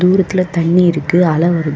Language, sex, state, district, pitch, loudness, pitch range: Tamil, female, Tamil Nadu, Chennai, 175 Hz, -13 LUFS, 165-180 Hz